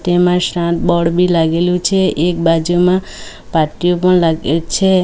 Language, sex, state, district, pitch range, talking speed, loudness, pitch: Gujarati, female, Gujarat, Valsad, 165-180 Hz, 145 wpm, -14 LUFS, 175 Hz